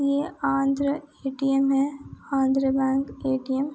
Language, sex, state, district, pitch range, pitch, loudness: Hindi, female, Uttar Pradesh, Etah, 270-280 Hz, 275 Hz, -25 LUFS